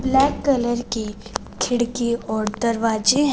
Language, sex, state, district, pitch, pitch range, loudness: Hindi, female, Punjab, Fazilka, 235 Hz, 220-255 Hz, -21 LUFS